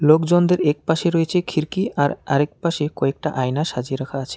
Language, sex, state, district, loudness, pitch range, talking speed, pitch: Bengali, male, West Bengal, Alipurduar, -20 LUFS, 140-170 Hz, 150 wpm, 155 Hz